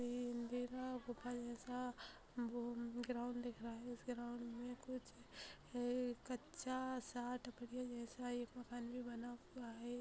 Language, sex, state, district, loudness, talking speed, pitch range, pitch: Hindi, female, Bihar, Samastipur, -48 LUFS, 120 wpm, 240-250 Hz, 245 Hz